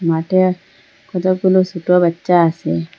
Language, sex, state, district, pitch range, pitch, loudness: Bengali, female, Assam, Hailakandi, 170-185 Hz, 180 Hz, -16 LUFS